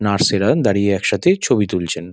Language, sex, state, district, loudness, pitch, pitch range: Bengali, male, West Bengal, Dakshin Dinajpur, -17 LUFS, 100 Hz, 90-105 Hz